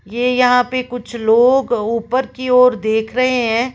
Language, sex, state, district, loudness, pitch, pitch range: Hindi, female, Uttar Pradesh, Lalitpur, -15 LUFS, 245 Hz, 230-255 Hz